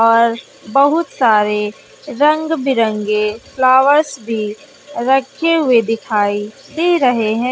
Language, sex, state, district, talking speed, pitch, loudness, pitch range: Hindi, female, Bihar, West Champaran, 105 wpm, 240 Hz, -15 LUFS, 215-285 Hz